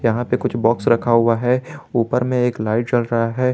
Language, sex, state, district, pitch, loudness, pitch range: Hindi, male, Jharkhand, Garhwa, 120 Hz, -18 LUFS, 115-125 Hz